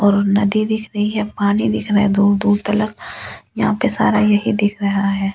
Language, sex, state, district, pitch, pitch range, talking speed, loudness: Hindi, female, Delhi, New Delhi, 205 Hz, 200-210 Hz, 215 wpm, -17 LUFS